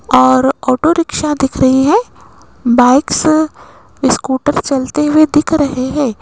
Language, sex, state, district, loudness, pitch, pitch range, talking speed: Hindi, female, Rajasthan, Jaipur, -12 LUFS, 280 Hz, 260-305 Hz, 125 wpm